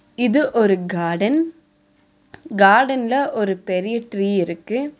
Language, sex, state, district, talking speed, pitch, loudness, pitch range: Tamil, female, Tamil Nadu, Nilgiris, 95 wpm, 220 Hz, -19 LUFS, 195-270 Hz